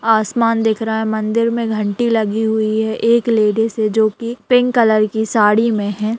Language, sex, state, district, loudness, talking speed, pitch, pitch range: Hindi, female, Bihar, Darbhanga, -16 LUFS, 205 wpm, 220 Hz, 215-230 Hz